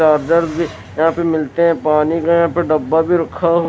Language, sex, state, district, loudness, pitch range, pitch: Hindi, male, Bihar, West Champaran, -15 LUFS, 155-170 Hz, 165 Hz